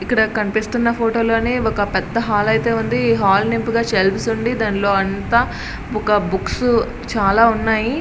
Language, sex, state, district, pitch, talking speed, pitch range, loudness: Telugu, female, Andhra Pradesh, Srikakulam, 225 Hz, 155 wpm, 205-230 Hz, -17 LUFS